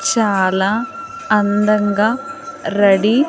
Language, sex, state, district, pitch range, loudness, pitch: Telugu, female, Andhra Pradesh, Sri Satya Sai, 200-270 Hz, -16 LUFS, 215 Hz